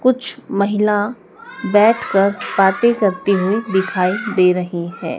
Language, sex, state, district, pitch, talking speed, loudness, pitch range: Hindi, female, Madhya Pradesh, Dhar, 200 Hz, 125 wpm, -17 LUFS, 185-230 Hz